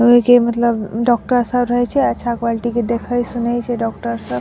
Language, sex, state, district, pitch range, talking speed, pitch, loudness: Maithili, female, Bihar, Madhepura, 235-245 Hz, 205 wpm, 240 Hz, -17 LUFS